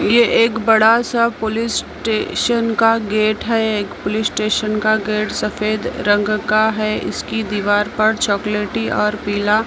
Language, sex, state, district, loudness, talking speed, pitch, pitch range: Hindi, female, Maharashtra, Mumbai Suburban, -17 LUFS, 150 wpm, 215 Hz, 210-225 Hz